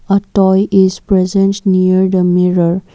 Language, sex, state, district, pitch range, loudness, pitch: English, female, Assam, Kamrup Metropolitan, 185-195 Hz, -12 LUFS, 190 Hz